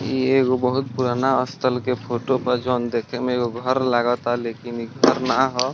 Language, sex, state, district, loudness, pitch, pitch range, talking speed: Bhojpuri, male, Bihar, East Champaran, -21 LUFS, 125 Hz, 120-130 Hz, 200 wpm